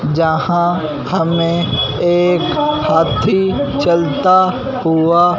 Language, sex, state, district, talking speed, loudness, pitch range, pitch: Hindi, male, Punjab, Fazilka, 65 wpm, -14 LUFS, 160-185 Hz, 170 Hz